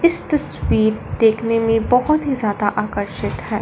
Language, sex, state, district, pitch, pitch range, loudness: Hindi, female, Punjab, Fazilka, 225 Hz, 215-275 Hz, -18 LUFS